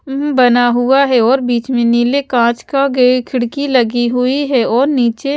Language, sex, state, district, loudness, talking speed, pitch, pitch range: Hindi, female, Haryana, Jhajjar, -13 LUFS, 200 wpm, 250 Hz, 240-275 Hz